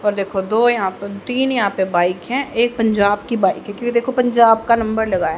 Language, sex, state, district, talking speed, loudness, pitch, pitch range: Hindi, female, Haryana, Charkhi Dadri, 245 wpm, -17 LUFS, 220 Hz, 195-240 Hz